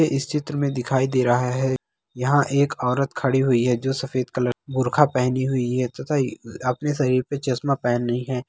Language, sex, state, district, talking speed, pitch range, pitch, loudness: Hindi, male, Bihar, Darbhanga, 205 wpm, 125-140 Hz, 130 Hz, -22 LUFS